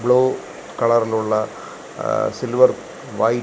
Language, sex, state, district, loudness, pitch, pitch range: Malayalam, male, Kerala, Kasaragod, -19 LUFS, 115 Hz, 110-125 Hz